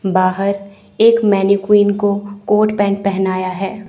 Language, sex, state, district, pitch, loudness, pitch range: Hindi, female, Chandigarh, Chandigarh, 200 Hz, -15 LUFS, 195-205 Hz